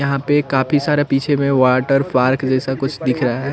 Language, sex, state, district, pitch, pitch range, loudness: Hindi, male, Chandigarh, Chandigarh, 135 Hz, 130-140 Hz, -17 LUFS